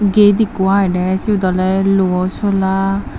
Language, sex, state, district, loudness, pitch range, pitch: Chakma, female, Tripura, Dhalai, -15 LUFS, 185-200 Hz, 195 Hz